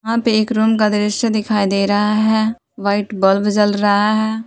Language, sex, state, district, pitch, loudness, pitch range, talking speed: Hindi, female, Jharkhand, Palamu, 210 Hz, -16 LUFS, 205-220 Hz, 200 wpm